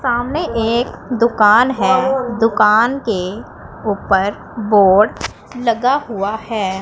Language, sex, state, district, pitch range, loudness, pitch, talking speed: Hindi, female, Punjab, Pathankot, 205-245 Hz, -15 LUFS, 225 Hz, 95 wpm